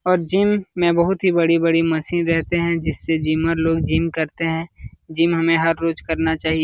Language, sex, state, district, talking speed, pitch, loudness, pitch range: Hindi, male, Uttar Pradesh, Jalaun, 200 wpm, 165 Hz, -19 LUFS, 160-170 Hz